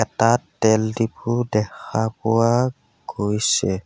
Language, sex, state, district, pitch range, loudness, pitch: Assamese, male, Assam, Sonitpur, 105-115 Hz, -21 LUFS, 110 Hz